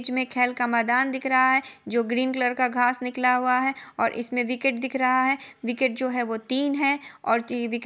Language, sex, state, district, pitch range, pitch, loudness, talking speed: Hindi, female, Chhattisgarh, Korba, 245-265 Hz, 255 Hz, -24 LUFS, 235 wpm